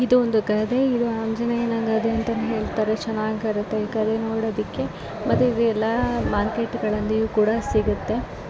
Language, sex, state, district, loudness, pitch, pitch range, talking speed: Kannada, female, Karnataka, Raichur, -23 LUFS, 225 Hz, 215-230 Hz, 115 wpm